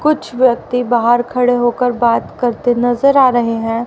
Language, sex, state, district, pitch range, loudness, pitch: Hindi, female, Haryana, Rohtak, 240-250 Hz, -14 LUFS, 245 Hz